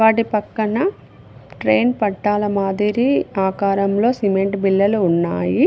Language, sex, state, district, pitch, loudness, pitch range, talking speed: Telugu, female, Telangana, Mahabubabad, 200 Hz, -18 LUFS, 170-215 Hz, 95 wpm